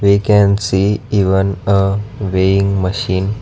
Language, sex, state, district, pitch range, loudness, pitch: English, male, Karnataka, Bangalore, 95-100 Hz, -14 LUFS, 100 Hz